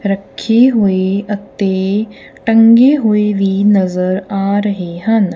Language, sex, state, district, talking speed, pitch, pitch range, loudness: Punjabi, female, Punjab, Kapurthala, 110 wpm, 200 Hz, 195-220 Hz, -13 LUFS